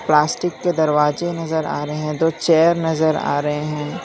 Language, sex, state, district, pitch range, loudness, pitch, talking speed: Hindi, male, Gujarat, Valsad, 150-165 Hz, -19 LUFS, 155 Hz, 205 wpm